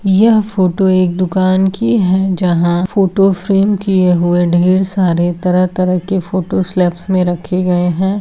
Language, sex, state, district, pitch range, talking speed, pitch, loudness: Hindi, female, Bihar, Vaishali, 180-195 Hz, 160 wpm, 185 Hz, -13 LUFS